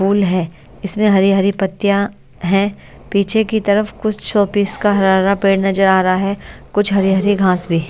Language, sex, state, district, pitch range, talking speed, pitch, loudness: Hindi, female, Odisha, Nuapada, 190-205 Hz, 190 wpm, 195 Hz, -15 LUFS